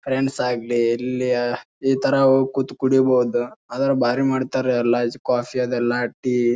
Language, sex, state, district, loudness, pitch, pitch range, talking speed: Kannada, male, Karnataka, Bijapur, -21 LUFS, 125 Hz, 120-130 Hz, 145 wpm